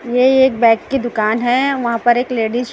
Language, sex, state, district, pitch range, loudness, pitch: Hindi, female, Maharashtra, Gondia, 235-255 Hz, -15 LUFS, 240 Hz